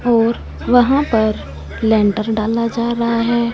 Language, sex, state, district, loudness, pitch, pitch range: Hindi, female, Punjab, Fazilka, -16 LUFS, 230 Hz, 220-235 Hz